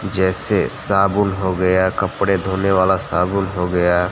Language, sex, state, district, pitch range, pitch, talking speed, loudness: Hindi, male, Gujarat, Gandhinagar, 90-100 Hz, 95 Hz, 145 wpm, -17 LUFS